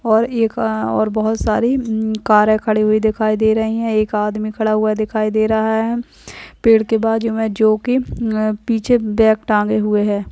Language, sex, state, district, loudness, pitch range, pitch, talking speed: Hindi, female, Maharashtra, Solapur, -16 LUFS, 215-225 Hz, 220 Hz, 205 wpm